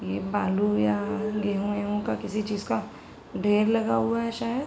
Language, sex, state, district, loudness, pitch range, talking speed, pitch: Hindi, female, Uttar Pradesh, Gorakhpur, -26 LUFS, 200-215 Hz, 180 wpm, 205 Hz